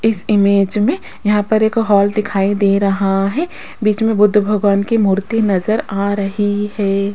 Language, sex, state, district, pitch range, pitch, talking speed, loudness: Hindi, female, Rajasthan, Jaipur, 200-215 Hz, 205 Hz, 175 wpm, -15 LUFS